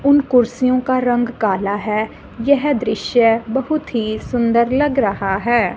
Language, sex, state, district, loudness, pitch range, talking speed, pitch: Hindi, female, Punjab, Fazilka, -17 LUFS, 220-260 Hz, 145 wpm, 240 Hz